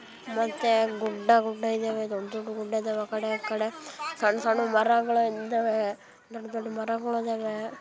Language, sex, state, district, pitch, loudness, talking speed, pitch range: Kannada, female, Karnataka, Bellary, 225 Hz, -28 LUFS, 140 wpm, 220-230 Hz